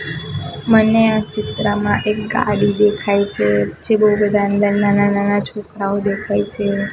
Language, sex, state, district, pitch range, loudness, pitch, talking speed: Gujarati, female, Gujarat, Gandhinagar, 200-210 Hz, -16 LUFS, 205 Hz, 140 wpm